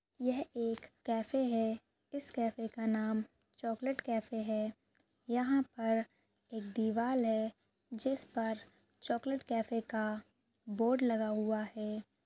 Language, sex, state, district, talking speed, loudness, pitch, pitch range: Hindi, female, Maharashtra, Sindhudurg, 115 wpm, -37 LUFS, 225 Hz, 220-250 Hz